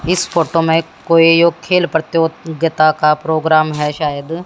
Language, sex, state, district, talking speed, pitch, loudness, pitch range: Hindi, female, Haryana, Jhajjar, 150 wpm, 165 Hz, -14 LUFS, 155-165 Hz